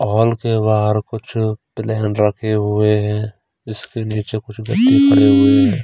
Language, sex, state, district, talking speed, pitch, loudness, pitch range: Hindi, male, Chandigarh, Chandigarh, 155 wpm, 110 Hz, -16 LUFS, 105-115 Hz